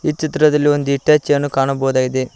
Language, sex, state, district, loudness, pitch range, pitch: Kannada, male, Karnataka, Koppal, -16 LUFS, 135-150 Hz, 145 Hz